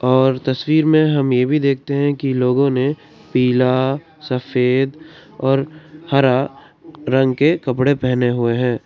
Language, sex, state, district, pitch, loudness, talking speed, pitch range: Hindi, male, Karnataka, Bangalore, 135 Hz, -17 LUFS, 140 wpm, 125-150 Hz